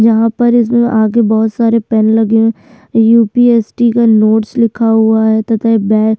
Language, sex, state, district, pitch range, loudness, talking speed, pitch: Hindi, female, Uttarakhand, Tehri Garhwal, 220-230 Hz, -10 LUFS, 195 wpm, 225 Hz